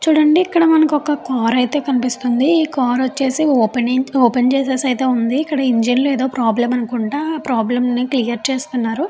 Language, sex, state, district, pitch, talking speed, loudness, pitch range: Telugu, female, Andhra Pradesh, Chittoor, 260 Hz, 150 wpm, -16 LUFS, 245-290 Hz